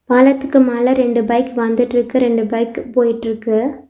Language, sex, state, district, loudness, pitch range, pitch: Tamil, female, Tamil Nadu, Nilgiris, -15 LUFS, 230-255 Hz, 240 Hz